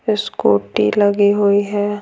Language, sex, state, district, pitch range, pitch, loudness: Hindi, female, Bihar, Patna, 200-205 Hz, 205 Hz, -16 LUFS